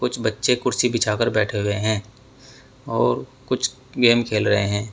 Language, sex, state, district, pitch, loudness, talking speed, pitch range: Hindi, male, Uttar Pradesh, Saharanpur, 115 Hz, -21 LUFS, 160 wpm, 105-125 Hz